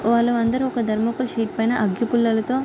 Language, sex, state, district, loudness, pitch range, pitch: Telugu, female, Andhra Pradesh, Krishna, -21 LUFS, 225-245 Hz, 235 Hz